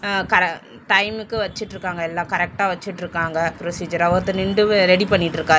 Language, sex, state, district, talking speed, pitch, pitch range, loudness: Tamil, male, Tamil Nadu, Chennai, 130 wpm, 185 Hz, 170-200 Hz, -20 LUFS